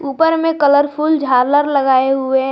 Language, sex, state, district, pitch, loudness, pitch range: Hindi, female, Jharkhand, Garhwa, 285 Hz, -14 LUFS, 265-300 Hz